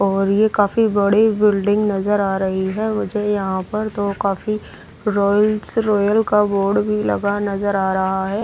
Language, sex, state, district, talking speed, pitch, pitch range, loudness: Hindi, female, Delhi, New Delhi, 165 wpm, 205 Hz, 195-210 Hz, -18 LUFS